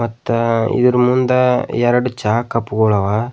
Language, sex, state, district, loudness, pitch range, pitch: Kannada, male, Karnataka, Bidar, -16 LUFS, 110-125 Hz, 120 Hz